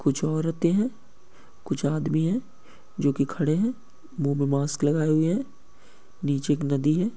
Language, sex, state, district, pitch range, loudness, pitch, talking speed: Hindi, male, West Bengal, Malda, 145-195 Hz, -25 LUFS, 155 Hz, 160 wpm